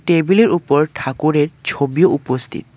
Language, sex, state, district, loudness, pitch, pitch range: Bengali, male, West Bengal, Alipurduar, -16 LUFS, 150 Hz, 140-170 Hz